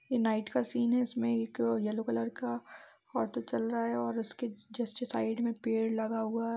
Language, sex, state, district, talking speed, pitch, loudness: Hindi, female, Bihar, East Champaran, 220 wpm, 225 Hz, -34 LUFS